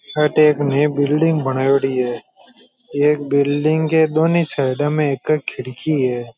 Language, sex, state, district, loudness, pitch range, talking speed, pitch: Rajasthani, male, Rajasthan, Churu, -17 LUFS, 135-155 Hz, 150 wpm, 145 Hz